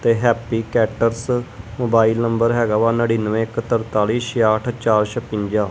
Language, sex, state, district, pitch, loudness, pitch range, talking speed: Punjabi, male, Punjab, Kapurthala, 115 Hz, -19 LUFS, 110-120 Hz, 125 wpm